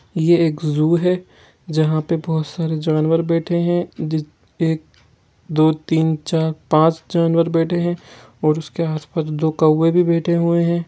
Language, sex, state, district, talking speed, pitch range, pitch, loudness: Hindi, male, Jharkhand, Jamtara, 155 wpm, 155-170 Hz, 160 Hz, -18 LUFS